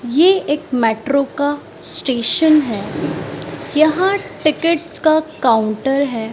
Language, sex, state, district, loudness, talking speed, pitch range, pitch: Hindi, female, Maharashtra, Mumbai Suburban, -17 LUFS, 105 wpm, 245-315 Hz, 290 Hz